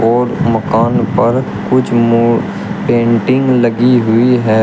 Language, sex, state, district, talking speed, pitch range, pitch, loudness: Hindi, male, Uttar Pradesh, Shamli, 115 wpm, 115-125 Hz, 120 Hz, -12 LUFS